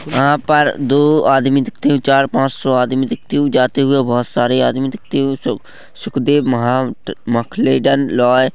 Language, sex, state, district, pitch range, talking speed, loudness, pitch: Hindi, male, Chhattisgarh, Rajnandgaon, 125-140 Hz, 160 wpm, -15 LUFS, 135 Hz